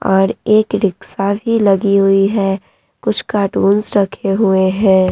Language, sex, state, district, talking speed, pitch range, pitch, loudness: Hindi, female, Bihar, Vaishali, 150 wpm, 195-205 Hz, 200 Hz, -14 LUFS